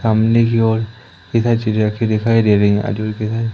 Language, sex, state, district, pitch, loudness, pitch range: Hindi, male, Madhya Pradesh, Umaria, 110 Hz, -16 LUFS, 105-115 Hz